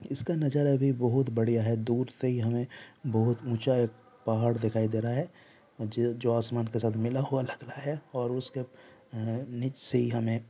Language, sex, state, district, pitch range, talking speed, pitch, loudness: Hindi, male, Jharkhand, Sahebganj, 115-135 Hz, 190 wpm, 120 Hz, -30 LUFS